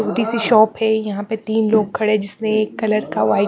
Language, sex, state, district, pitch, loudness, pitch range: Hindi, female, Bihar, Katihar, 215 Hz, -18 LUFS, 215-220 Hz